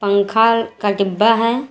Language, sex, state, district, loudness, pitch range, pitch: Hindi, female, Jharkhand, Garhwa, -16 LUFS, 200-230 Hz, 220 Hz